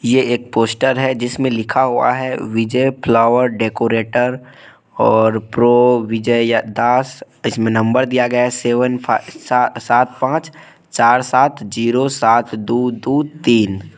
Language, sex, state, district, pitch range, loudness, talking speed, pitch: Hindi, male, Bihar, Purnia, 115-130 Hz, -15 LUFS, 135 wpm, 120 Hz